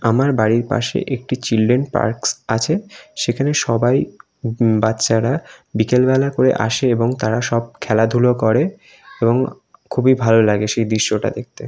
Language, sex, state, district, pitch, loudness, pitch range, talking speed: Bengali, male, West Bengal, North 24 Parganas, 120 Hz, -17 LUFS, 110-130 Hz, 135 wpm